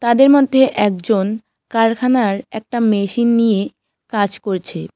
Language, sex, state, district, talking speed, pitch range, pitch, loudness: Bengali, female, West Bengal, Cooch Behar, 110 wpm, 200-240 Hz, 220 Hz, -16 LUFS